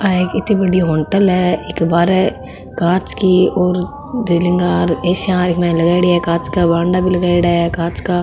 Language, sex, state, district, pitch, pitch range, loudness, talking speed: Marwari, female, Rajasthan, Nagaur, 180 Hz, 170-185 Hz, -15 LUFS, 175 wpm